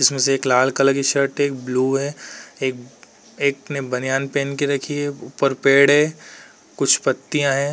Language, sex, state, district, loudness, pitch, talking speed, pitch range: Hindi, male, Uttar Pradesh, Varanasi, -19 LUFS, 140 Hz, 195 wpm, 135-140 Hz